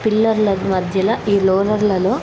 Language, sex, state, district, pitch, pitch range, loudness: Telugu, female, Andhra Pradesh, Krishna, 200 Hz, 190-215 Hz, -17 LUFS